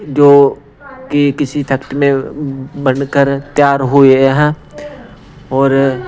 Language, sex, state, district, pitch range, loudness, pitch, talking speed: Hindi, male, Punjab, Pathankot, 135-145 Hz, -12 LUFS, 140 Hz, 100 wpm